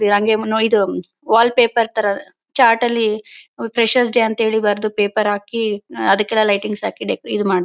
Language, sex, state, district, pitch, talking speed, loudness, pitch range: Kannada, female, Karnataka, Bellary, 220 Hz, 140 wpm, -17 LUFS, 210-230 Hz